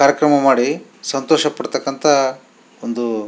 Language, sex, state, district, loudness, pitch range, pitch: Kannada, male, Karnataka, Shimoga, -17 LUFS, 130-145 Hz, 135 Hz